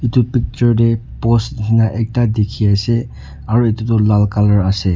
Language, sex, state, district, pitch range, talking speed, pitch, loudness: Nagamese, male, Nagaland, Dimapur, 105-115 Hz, 170 wpm, 115 Hz, -15 LUFS